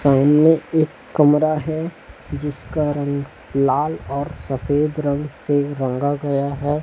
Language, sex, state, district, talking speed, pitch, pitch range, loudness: Hindi, male, Chhattisgarh, Raipur, 125 wpm, 145 Hz, 140-150 Hz, -20 LUFS